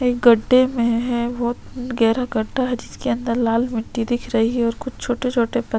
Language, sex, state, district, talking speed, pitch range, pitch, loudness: Hindi, female, Chhattisgarh, Sukma, 185 wpm, 230-250 Hz, 240 Hz, -20 LUFS